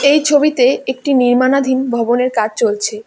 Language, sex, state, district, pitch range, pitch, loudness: Bengali, female, West Bengal, Alipurduar, 230-275 Hz, 255 Hz, -14 LUFS